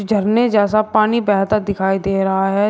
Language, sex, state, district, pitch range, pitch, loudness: Hindi, male, Uttar Pradesh, Shamli, 195-215 Hz, 205 Hz, -16 LUFS